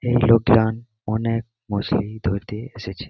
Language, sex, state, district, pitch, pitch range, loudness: Bengali, male, West Bengal, Malda, 110 Hz, 105-115 Hz, -21 LUFS